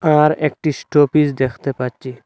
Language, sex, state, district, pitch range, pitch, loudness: Bengali, male, Assam, Hailakandi, 130-150 Hz, 145 Hz, -17 LUFS